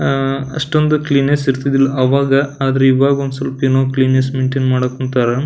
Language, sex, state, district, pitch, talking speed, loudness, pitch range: Kannada, male, Karnataka, Belgaum, 135 Hz, 155 wpm, -15 LUFS, 130-140 Hz